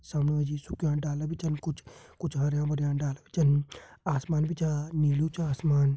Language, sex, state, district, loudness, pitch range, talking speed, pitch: Hindi, male, Uttarakhand, Tehri Garhwal, -29 LUFS, 145-155 Hz, 200 wpm, 150 Hz